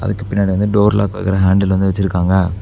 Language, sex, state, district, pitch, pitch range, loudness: Tamil, male, Tamil Nadu, Namakkal, 95 Hz, 95-105 Hz, -15 LUFS